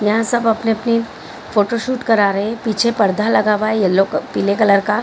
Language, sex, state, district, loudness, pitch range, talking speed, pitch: Hindi, female, Bihar, Lakhisarai, -16 LUFS, 205-230 Hz, 215 wpm, 215 Hz